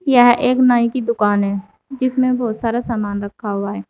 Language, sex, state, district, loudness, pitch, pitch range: Hindi, female, Uttar Pradesh, Saharanpur, -17 LUFS, 235 Hz, 205-250 Hz